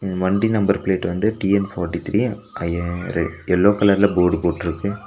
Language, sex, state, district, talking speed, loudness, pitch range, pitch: Tamil, male, Tamil Nadu, Nilgiris, 140 wpm, -20 LUFS, 85-100 Hz, 95 Hz